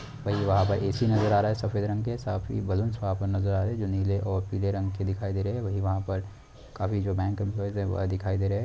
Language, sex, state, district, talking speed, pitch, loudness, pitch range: Hindi, male, West Bengal, Dakshin Dinajpur, 220 wpm, 100 Hz, -28 LUFS, 95-105 Hz